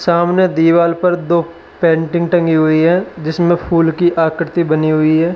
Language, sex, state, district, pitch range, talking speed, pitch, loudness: Hindi, male, Uttar Pradesh, Lalitpur, 160-175 Hz, 170 wpm, 170 Hz, -14 LUFS